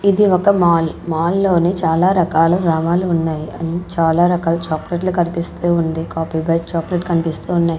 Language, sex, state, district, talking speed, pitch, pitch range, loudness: Telugu, female, Andhra Pradesh, Sri Satya Sai, 145 wpm, 170 Hz, 165-175 Hz, -17 LUFS